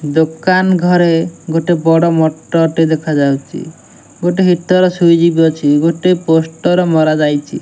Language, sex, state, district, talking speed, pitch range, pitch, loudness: Odia, male, Odisha, Nuapada, 135 wpm, 160-175 Hz, 165 Hz, -12 LUFS